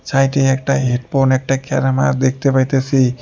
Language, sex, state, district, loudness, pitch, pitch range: Bengali, male, West Bengal, Alipurduar, -16 LUFS, 135 Hz, 130-135 Hz